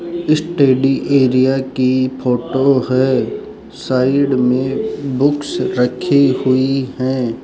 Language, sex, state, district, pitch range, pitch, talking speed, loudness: Hindi, male, Rajasthan, Jaipur, 130-140 Hz, 130 Hz, 90 wpm, -15 LUFS